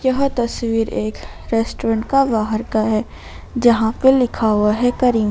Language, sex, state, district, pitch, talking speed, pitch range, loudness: Hindi, female, Jharkhand, Ranchi, 230 Hz, 160 wpm, 220-250 Hz, -18 LUFS